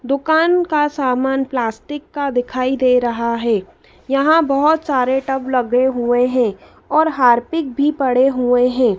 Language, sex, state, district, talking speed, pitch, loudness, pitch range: Hindi, female, Madhya Pradesh, Dhar, 145 wpm, 260 Hz, -16 LUFS, 245-290 Hz